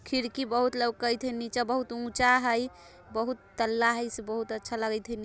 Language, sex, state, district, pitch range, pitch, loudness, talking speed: Bajjika, female, Bihar, Vaishali, 225-250 Hz, 235 Hz, -29 LUFS, 170 wpm